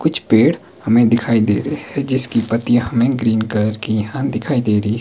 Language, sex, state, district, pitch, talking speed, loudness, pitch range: Hindi, male, Himachal Pradesh, Shimla, 115 Hz, 215 wpm, -16 LUFS, 110-125 Hz